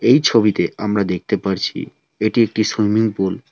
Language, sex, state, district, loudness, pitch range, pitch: Bengali, male, West Bengal, Alipurduar, -18 LUFS, 100-110 Hz, 105 Hz